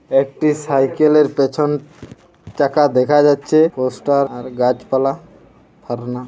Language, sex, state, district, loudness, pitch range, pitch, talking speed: Bengali, male, West Bengal, Jhargram, -16 LUFS, 130-150 Hz, 140 Hz, 95 wpm